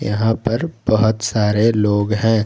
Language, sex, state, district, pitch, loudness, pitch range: Hindi, male, Jharkhand, Garhwa, 110 Hz, -17 LUFS, 105-115 Hz